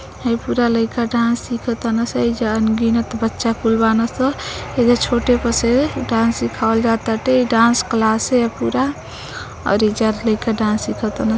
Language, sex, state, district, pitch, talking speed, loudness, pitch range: Bhojpuri, female, Uttar Pradesh, Deoria, 230 Hz, 165 wpm, -17 LUFS, 225-240 Hz